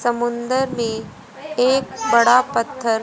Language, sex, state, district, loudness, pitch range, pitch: Hindi, female, Haryana, Rohtak, -19 LUFS, 235-265 Hz, 240 Hz